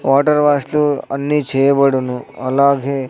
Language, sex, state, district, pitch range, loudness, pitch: Telugu, male, Andhra Pradesh, Sri Satya Sai, 135-145 Hz, -15 LUFS, 140 Hz